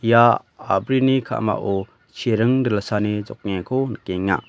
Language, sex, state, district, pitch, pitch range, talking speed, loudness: Garo, male, Meghalaya, West Garo Hills, 110 Hz, 100-130 Hz, 95 wpm, -21 LUFS